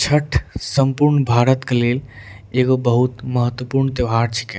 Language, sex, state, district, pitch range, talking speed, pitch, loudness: Angika, male, Bihar, Bhagalpur, 120-130 Hz, 130 wpm, 125 Hz, -18 LUFS